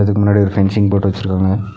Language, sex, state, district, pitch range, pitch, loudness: Tamil, male, Tamil Nadu, Nilgiris, 95-100 Hz, 100 Hz, -15 LUFS